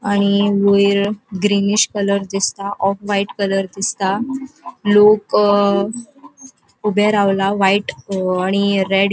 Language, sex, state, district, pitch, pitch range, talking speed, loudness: Konkani, female, Goa, North and South Goa, 200 Hz, 195-205 Hz, 100 wpm, -16 LUFS